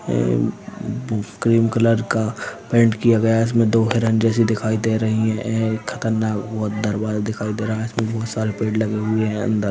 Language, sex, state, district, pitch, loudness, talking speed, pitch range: Hindi, male, Uttar Pradesh, Ghazipur, 110 Hz, -20 LUFS, 190 wpm, 110-115 Hz